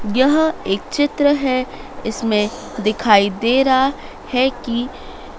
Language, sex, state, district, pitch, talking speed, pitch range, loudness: Hindi, female, Madhya Pradesh, Dhar, 250 Hz, 110 wpm, 215-270 Hz, -18 LUFS